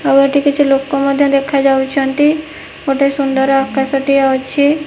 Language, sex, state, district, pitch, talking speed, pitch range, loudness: Odia, female, Odisha, Nuapada, 275 Hz, 150 wpm, 270-285 Hz, -13 LUFS